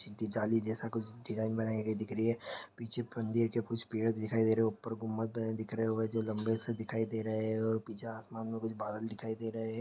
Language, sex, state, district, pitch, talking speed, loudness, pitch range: Hindi, male, Chhattisgarh, Sukma, 110 Hz, 245 wpm, -36 LUFS, 110-115 Hz